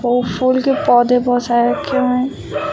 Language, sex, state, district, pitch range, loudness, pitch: Hindi, female, Uttar Pradesh, Lucknow, 245-260 Hz, -15 LUFS, 250 Hz